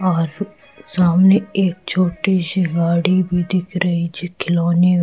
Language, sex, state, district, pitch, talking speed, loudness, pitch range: Hindi, female, Madhya Pradesh, Katni, 180 Hz, 130 wpm, -17 LUFS, 170-185 Hz